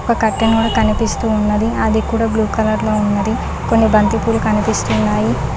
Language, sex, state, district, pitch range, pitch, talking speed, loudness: Telugu, female, Telangana, Mahabubabad, 215-225 Hz, 220 Hz, 130 wpm, -15 LUFS